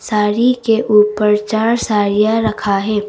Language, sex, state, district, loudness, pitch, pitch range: Hindi, female, Arunachal Pradesh, Papum Pare, -14 LUFS, 215 Hz, 210-225 Hz